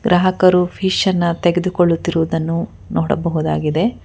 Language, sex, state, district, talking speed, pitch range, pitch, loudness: Kannada, female, Karnataka, Bangalore, 75 wpm, 165-185 Hz, 175 Hz, -17 LUFS